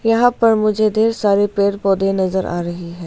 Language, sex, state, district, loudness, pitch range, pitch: Hindi, female, Arunachal Pradesh, Lower Dibang Valley, -16 LUFS, 190-220 Hz, 200 Hz